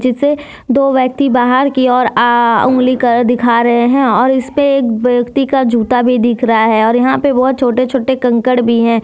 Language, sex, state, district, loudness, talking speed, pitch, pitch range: Hindi, female, Jharkhand, Deoghar, -11 LUFS, 200 wpm, 250 Hz, 240-265 Hz